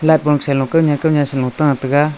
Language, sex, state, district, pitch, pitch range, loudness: Wancho, male, Arunachal Pradesh, Longding, 145 Hz, 140-155 Hz, -15 LUFS